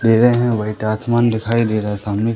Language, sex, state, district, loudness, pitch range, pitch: Hindi, male, Madhya Pradesh, Umaria, -17 LUFS, 110-120 Hz, 110 Hz